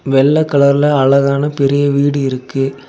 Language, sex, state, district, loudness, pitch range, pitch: Tamil, male, Tamil Nadu, Nilgiris, -13 LUFS, 135-145 Hz, 140 Hz